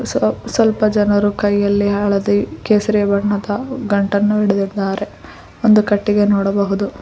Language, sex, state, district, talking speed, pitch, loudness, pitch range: Kannada, female, Karnataka, Koppal, 105 wpm, 205 Hz, -16 LUFS, 200-210 Hz